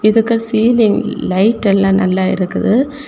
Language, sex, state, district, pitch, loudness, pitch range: Tamil, female, Tamil Nadu, Kanyakumari, 215 Hz, -13 LUFS, 195-230 Hz